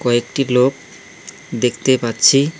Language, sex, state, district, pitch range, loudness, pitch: Bengali, male, West Bengal, Cooch Behar, 120-135 Hz, -16 LUFS, 125 Hz